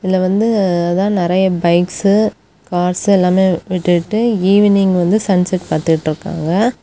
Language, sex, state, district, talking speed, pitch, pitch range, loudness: Tamil, female, Tamil Nadu, Kanyakumari, 105 wpm, 185 Hz, 175-200 Hz, -14 LUFS